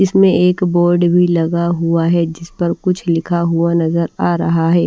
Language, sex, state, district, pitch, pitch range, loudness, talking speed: Hindi, female, Maharashtra, Washim, 170 Hz, 165-175 Hz, -15 LUFS, 195 wpm